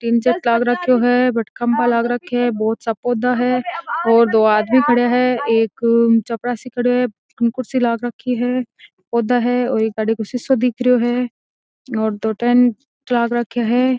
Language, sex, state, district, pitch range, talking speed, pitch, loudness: Marwari, female, Rajasthan, Nagaur, 230-250 Hz, 165 wpm, 240 Hz, -17 LUFS